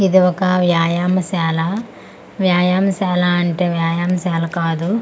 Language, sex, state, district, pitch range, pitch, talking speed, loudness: Telugu, female, Andhra Pradesh, Manyam, 170-185 Hz, 180 Hz, 85 wpm, -17 LUFS